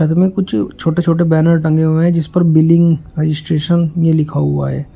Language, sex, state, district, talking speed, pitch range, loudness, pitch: Hindi, male, Uttar Pradesh, Shamli, 195 wpm, 155-170 Hz, -14 LUFS, 165 Hz